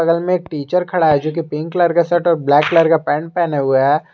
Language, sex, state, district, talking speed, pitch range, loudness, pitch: Hindi, male, Jharkhand, Garhwa, 275 wpm, 150-175 Hz, -16 LUFS, 165 Hz